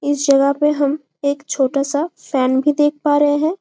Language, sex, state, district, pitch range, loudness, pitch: Hindi, female, Chhattisgarh, Bastar, 280-295 Hz, -17 LUFS, 290 Hz